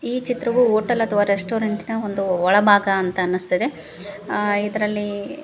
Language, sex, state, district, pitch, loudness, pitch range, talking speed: Kannada, female, Karnataka, Koppal, 205 Hz, -20 LUFS, 195-225 Hz, 145 wpm